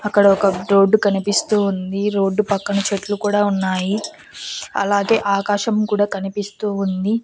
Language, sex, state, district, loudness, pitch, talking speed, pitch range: Telugu, female, Andhra Pradesh, Annamaya, -18 LUFS, 200 Hz, 125 wpm, 195-210 Hz